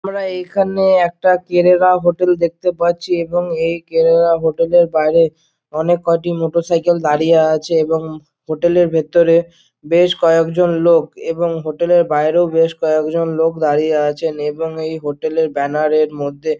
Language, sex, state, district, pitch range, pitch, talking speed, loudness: Bengali, male, West Bengal, Dakshin Dinajpur, 155-175 Hz, 165 Hz, 135 wpm, -15 LUFS